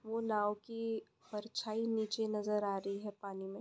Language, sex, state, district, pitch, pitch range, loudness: Hindi, female, West Bengal, Purulia, 210 Hz, 205-225 Hz, -39 LUFS